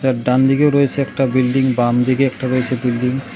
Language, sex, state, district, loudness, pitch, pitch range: Bengali, male, West Bengal, Cooch Behar, -16 LUFS, 130 Hz, 125-135 Hz